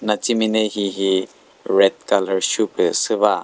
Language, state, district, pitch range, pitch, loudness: Chakhesang, Nagaland, Dimapur, 95-110 Hz, 100 Hz, -19 LUFS